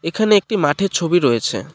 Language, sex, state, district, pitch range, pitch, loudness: Bengali, male, West Bengal, Cooch Behar, 165-205 Hz, 180 Hz, -17 LUFS